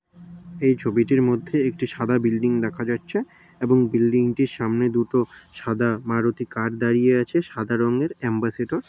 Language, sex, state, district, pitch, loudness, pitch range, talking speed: Bengali, male, West Bengal, Malda, 120 Hz, -22 LUFS, 115-130 Hz, 155 wpm